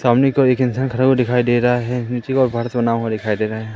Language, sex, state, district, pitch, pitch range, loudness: Hindi, male, Madhya Pradesh, Katni, 125 Hz, 115-130 Hz, -17 LUFS